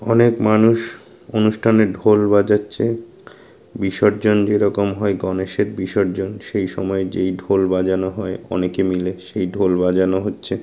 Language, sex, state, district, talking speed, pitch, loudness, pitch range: Bengali, male, West Bengal, Malda, 120 wpm, 100 Hz, -18 LUFS, 95-105 Hz